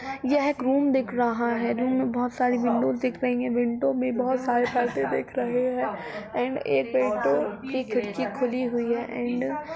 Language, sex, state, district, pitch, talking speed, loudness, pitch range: Hindi, female, Uttar Pradesh, Budaun, 245 Hz, 195 wpm, -26 LUFS, 235-260 Hz